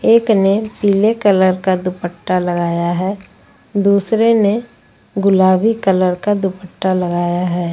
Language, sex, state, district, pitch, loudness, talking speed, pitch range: Hindi, female, Jharkhand, Ranchi, 190 Hz, -15 LUFS, 125 wpm, 180-205 Hz